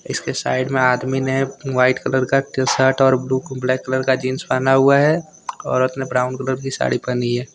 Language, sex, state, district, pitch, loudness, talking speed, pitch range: Hindi, male, Jharkhand, Deoghar, 130 Hz, -18 LUFS, 215 wpm, 130-135 Hz